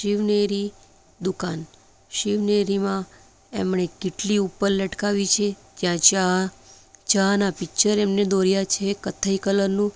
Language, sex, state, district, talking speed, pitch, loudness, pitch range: Gujarati, female, Gujarat, Valsad, 120 wpm, 195 Hz, -22 LUFS, 180-205 Hz